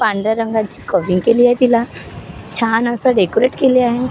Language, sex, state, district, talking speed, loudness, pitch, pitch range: Marathi, female, Maharashtra, Gondia, 160 wpm, -15 LUFS, 235 Hz, 220-250 Hz